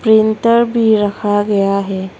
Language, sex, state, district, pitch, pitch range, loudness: Hindi, female, Arunachal Pradesh, Longding, 210 Hz, 200-220 Hz, -14 LUFS